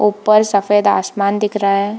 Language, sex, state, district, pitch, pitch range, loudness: Hindi, female, Bihar, Purnia, 205 Hz, 200-210 Hz, -14 LUFS